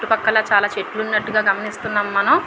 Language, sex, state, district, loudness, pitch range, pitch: Telugu, female, Andhra Pradesh, Visakhapatnam, -18 LUFS, 205-220 Hz, 215 Hz